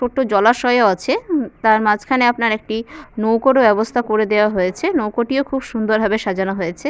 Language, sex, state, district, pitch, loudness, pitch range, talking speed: Bengali, female, West Bengal, Purulia, 225 Hz, -17 LUFS, 210-260 Hz, 185 wpm